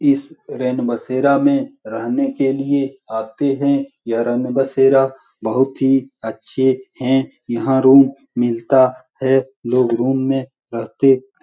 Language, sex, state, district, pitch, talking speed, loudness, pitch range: Hindi, male, Bihar, Supaul, 135 Hz, 130 wpm, -17 LUFS, 125-135 Hz